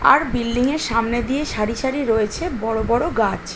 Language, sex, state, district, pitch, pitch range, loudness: Bengali, female, West Bengal, Jhargram, 240 Hz, 225-265 Hz, -20 LUFS